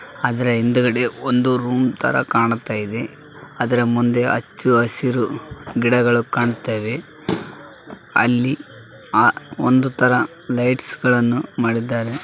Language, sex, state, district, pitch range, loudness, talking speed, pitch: Kannada, male, Karnataka, Raichur, 120-125 Hz, -19 LUFS, 95 wpm, 120 Hz